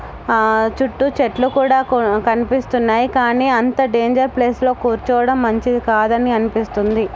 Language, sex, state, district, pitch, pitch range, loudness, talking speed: Telugu, female, Andhra Pradesh, Anantapur, 240 Hz, 225-255 Hz, -16 LUFS, 135 wpm